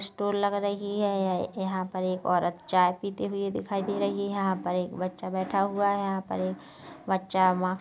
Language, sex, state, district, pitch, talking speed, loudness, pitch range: Hindi, female, Chhattisgarh, Kabirdham, 190 Hz, 220 wpm, -28 LUFS, 185-200 Hz